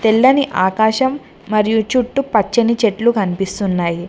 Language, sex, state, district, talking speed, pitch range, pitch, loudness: Telugu, female, Telangana, Mahabubabad, 90 wpm, 195-240 Hz, 220 Hz, -16 LUFS